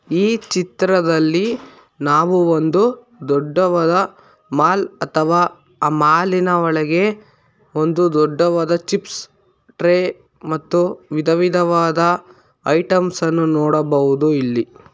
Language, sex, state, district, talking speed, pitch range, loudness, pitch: Kannada, male, Karnataka, Bangalore, 70 wpm, 155-180 Hz, -17 LUFS, 170 Hz